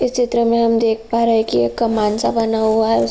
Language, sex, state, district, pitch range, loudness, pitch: Hindi, female, Uttar Pradesh, Jalaun, 220-230 Hz, -16 LUFS, 225 Hz